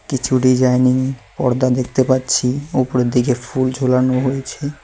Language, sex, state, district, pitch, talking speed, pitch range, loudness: Bengali, male, West Bengal, Cooch Behar, 130 Hz, 125 wpm, 125-130 Hz, -17 LUFS